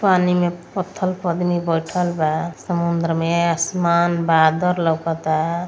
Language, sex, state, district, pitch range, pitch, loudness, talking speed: Hindi, female, Uttar Pradesh, Ghazipur, 165-180 Hz, 170 Hz, -19 LUFS, 125 wpm